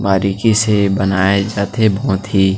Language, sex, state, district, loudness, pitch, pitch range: Chhattisgarhi, male, Chhattisgarh, Sarguja, -15 LUFS, 100 Hz, 95-105 Hz